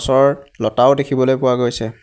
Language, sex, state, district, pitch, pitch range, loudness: Assamese, male, Assam, Hailakandi, 130 Hz, 120-135 Hz, -16 LUFS